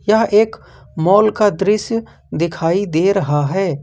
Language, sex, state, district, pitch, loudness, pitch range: Hindi, male, Jharkhand, Ranchi, 195 Hz, -16 LUFS, 165-210 Hz